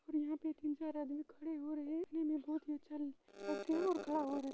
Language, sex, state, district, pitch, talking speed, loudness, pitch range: Hindi, female, Bihar, Supaul, 305 Hz, 250 wpm, -42 LUFS, 295-315 Hz